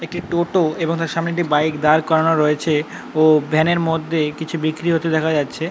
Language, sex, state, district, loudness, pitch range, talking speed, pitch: Bengali, male, West Bengal, North 24 Parganas, -18 LUFS, 155-165 Hz, 200 wpm, 160 Hz